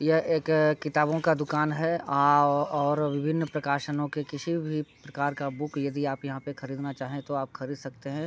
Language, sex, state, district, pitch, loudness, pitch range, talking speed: Hindi, male, Bihar, Sitamarhi, 145 Hz, -28 LUFS, 140-155 Hz, 195 wpm